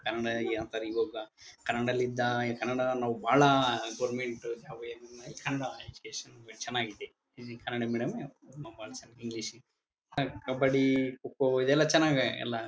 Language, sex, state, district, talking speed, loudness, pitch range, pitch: Kannada, male, Karnataka, Bellary, 130 wpm, -31 LUFS, 115-135 Hz, 120 Hz